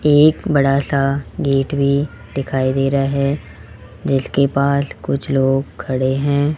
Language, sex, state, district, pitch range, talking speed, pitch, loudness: Hindi, male, Rajasthan, Jaipur, 135-140 Hz, 135 wpm, 140 Hz, -18 LUFS